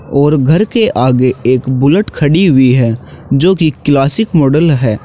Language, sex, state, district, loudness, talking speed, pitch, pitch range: Hindi, male, Uttar Pradesh, Shamli, -10 LUFS, 155 wpm, 140 Hz, 130-160 Hz